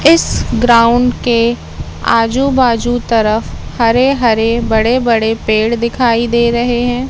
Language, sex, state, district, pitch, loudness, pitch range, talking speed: Hindi, female, Madhya Pradesh, Katni, 235 Hz, -12 LUFS, 230-245 Hz, 125 wpm